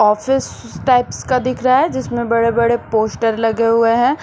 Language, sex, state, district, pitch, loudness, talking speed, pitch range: Hindi, female, Haryana, Rohtak, 235 Hz, -16 LUFS, 185 wpm, 225-255 Hz